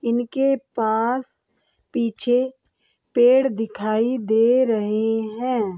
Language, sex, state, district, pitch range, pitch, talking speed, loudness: Hindi, female, Bihar, Begusarai, 220-255 Hz, 235 Hz, 85 wpm, -21 LUFS